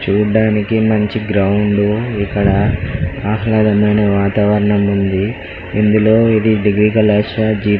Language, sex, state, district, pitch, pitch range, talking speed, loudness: Telugu, male, Telangana, Karimnagar, 105 Hz, 100-110 Hz, 75 wpm, -14 LUFS